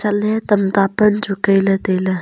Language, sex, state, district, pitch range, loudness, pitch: Wancho, female, Arunachal Pradesh, Longding, 195-210 Hz, -16 LUFS, 195 Hz